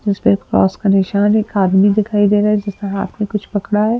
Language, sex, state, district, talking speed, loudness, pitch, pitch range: Hindi, female, Madhya Pradesh, Bhopal, 195 wpm, -15 LUFS, 205 Hz, 195-210 Hz